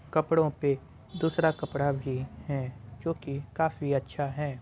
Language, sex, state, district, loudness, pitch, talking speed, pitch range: Hindi, male, Bihar, Muzaffarpur, -30 LUFS, 145 Hz, 155 wpm, 135-160 Hz